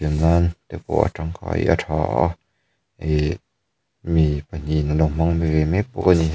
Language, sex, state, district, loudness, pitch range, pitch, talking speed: Mizo, male, Mizoram, Aizawl, -21 LUFS, 75-85 Hz, 80 Hz, 180 wpm